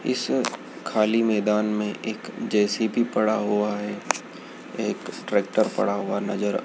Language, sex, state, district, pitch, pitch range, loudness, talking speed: Hindi, male, Madhya Pradesh, Dhar, 105 Hz, 105-110 Hz, -25 LUFS, 125 wpm